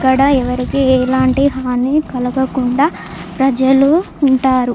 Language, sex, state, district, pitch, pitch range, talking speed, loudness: Telugu, female, Andhra Pradesh, Chittoor, 260 Hz, 250-275 Hz, 100 wpm, -14 LUFS